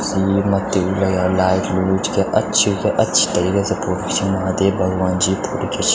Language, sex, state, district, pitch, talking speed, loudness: Garhwali, male, Uttarakhand, Tehri Garhwal, 95 Hz, 180 wpm, -18 LUFS